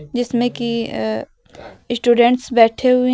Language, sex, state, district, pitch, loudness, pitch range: Hindi, female, Uttar Pradesh, Lucknow, 240 Hz, -17 LUFS, 230-245 Hz